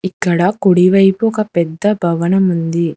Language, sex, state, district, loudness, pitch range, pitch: Telugu, female, Telangana, Hyderabad, -14 LUFS, 170-195 Hz, 185 Hz